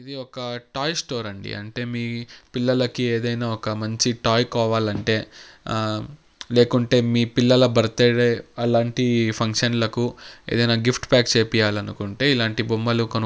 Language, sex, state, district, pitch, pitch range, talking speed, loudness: Telugu, male, Andhra Pradesh, Anantapur, 120 Hz, 115-125 Hz, 130 wpm, -21 LUFS